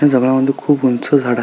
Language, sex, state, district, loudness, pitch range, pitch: Marathi, male, Maharashtra, Solapur, -15 LUFS, 130-145 Hz, 130 Hz